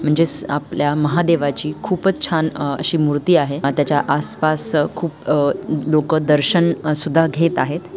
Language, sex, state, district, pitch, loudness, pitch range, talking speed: Marathi, female, Maharashtra, Dhule, 155 Hz, -18 LUFS, 145-165 Hz, 135 wpm